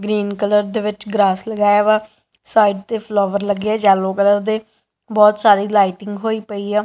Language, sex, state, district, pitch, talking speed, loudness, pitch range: Punjabi, female, Punjab, Kapurthala, 210 Hz, 175 wpm, -17 LUFS, 200-215 Hz